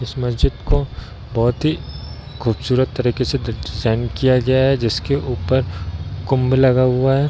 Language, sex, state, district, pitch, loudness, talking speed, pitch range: Hindi, male, Bihar, Darbhanga, 125 Hz, -19 LUFS, 150 wpm, 115-130 Hz